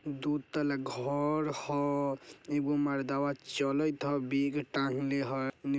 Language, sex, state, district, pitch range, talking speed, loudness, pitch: Bajjika, male, Bihar, Vaishali, 135-145 Hz, 125 wpm, -33 LUFS, 140 Hz